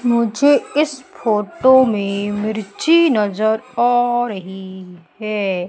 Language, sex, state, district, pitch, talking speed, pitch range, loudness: Hindi, female, Madhya Pradesh, Umaria, 220 Hz, 95 wpm, 200-250 Hz, -17 LUFS